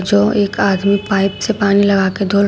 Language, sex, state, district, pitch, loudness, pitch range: Hindi, female, Uttar Pradesh, Shamli, 200 Hz, -14 LUFS, 195-205 Hz